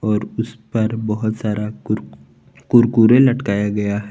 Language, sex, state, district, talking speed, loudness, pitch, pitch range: Hindi, male, Jharkhand, Palamu, 145 wpm, -18 LUFS, 110 Hz, 105-115 Hz